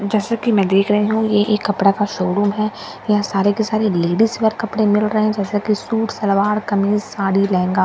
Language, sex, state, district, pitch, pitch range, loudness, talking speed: Hindi, female, Bihar, Katihar, 210 Hz, 200-215 Hz, -17 LUFS, 230 wpm